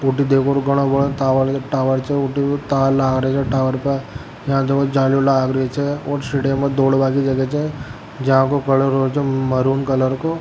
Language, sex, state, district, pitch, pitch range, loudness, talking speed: Rajasthani, male, Rajasthan, Churu, 135 Hz, 135-140 Hz, -18 LUFS, 115 wpm